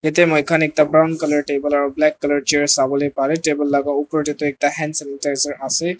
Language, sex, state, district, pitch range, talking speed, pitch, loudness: Nagamese, male, Nagaland, Dimapur, 145-155 Hz, 210 wpm, 145 Hz, -18 LUFS